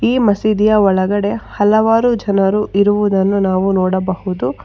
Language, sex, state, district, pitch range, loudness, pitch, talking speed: Kannada, female, Karnataka, Bangalore, 195-215 Hz, -14 LUFS, 205 Hz, 105 wpm